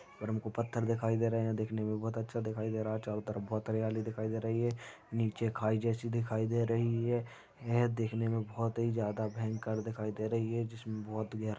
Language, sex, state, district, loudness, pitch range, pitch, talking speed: Hindi, male, Uttarakhand, Uttarkashi, -35 LUFS, 110-115 Hz, 110 Hz, 235 wpm